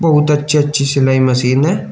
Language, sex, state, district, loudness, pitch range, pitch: Hindi, male, Uttar Pradesh, Shamli, -13 LUFS, 130-150 Hz, 145 Hz